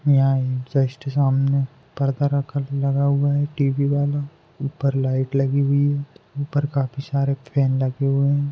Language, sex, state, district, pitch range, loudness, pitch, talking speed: Hindi, male, Maharashtra, Pune, 135-145 Hz, -22 LUFS, 140 Hz, 140 wpm